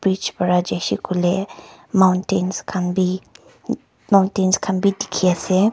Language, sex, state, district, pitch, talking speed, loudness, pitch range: Nagamese, male, Nagaland, Kohima, 185 Hz, 125 wpm, -20 LUFS, 180-195 Hz